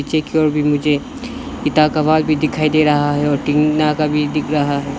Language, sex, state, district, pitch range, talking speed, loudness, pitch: Hindi, male, Arunachal Pradesh, Lower Dibang Valley, 145-155 Hz, 205 wpm, -16 LUFS, 150 Hz